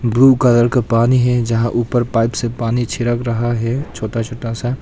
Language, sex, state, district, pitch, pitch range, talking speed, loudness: Hindi, male, Arunachal Pradesh, Papum Pare, 120 Hz, 115-125 Hz, 200 wpm, -16 LUFS